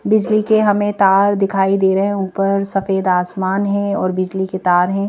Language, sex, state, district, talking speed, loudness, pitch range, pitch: Hindi, female, Madhya Pradesh, Bhopal, 200 wpm, -16 LUFS, 190-200 Hz, 195 Hz